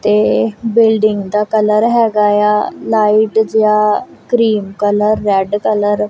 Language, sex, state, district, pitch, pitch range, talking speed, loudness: Punjabi, female, Punjab, Kapurthala, 210 Hz, 205-220 Hz, 120 wpm, -13 LUFS